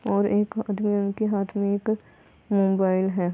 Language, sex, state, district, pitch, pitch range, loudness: Hindi, female, Bihar, Gopalganj, 200 Hz, 195-210 Hz, -24 LUFS